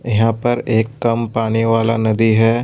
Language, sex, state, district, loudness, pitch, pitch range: Hindi, male, Tripura, West Tripura, -16 LUFS, 115 Hz, 110-115 Hz